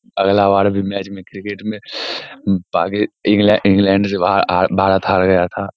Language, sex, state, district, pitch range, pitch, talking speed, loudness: Hindi, male, Bihar, Begusarai, 95-100 Hz, 100 Hz, 155 wpm, -16 LUFS